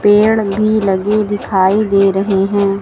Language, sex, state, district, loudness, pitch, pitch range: Hindi, female, Uttar Pradesh, Lucknow, -13 LUFS, 200 Hz, 195-210 Hz